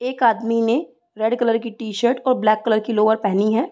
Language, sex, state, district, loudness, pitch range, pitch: Hindi, female, Uttar Pradesh, Gorakhpur, -19 LUFS, 220-240 Hz, 230 Hz